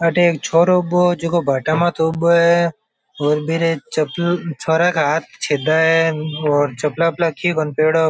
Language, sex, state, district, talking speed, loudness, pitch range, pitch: Marwari, male, Rajasthan, Nagaur, 165 wpm, -17 LUFS, 155-170 Hz, 165 Hz